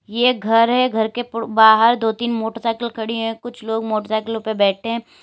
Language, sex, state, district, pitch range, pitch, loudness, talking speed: Hindi, female, Uttar Pradesh, Lalitpur, 220-235 Hz, 225 Hz, -18 LUFS, 205 wpm